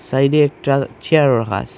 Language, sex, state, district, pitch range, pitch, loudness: Bengali, male, Assam, Hailakandi, 115-145 Hz, 135 Hz, -16 LUFS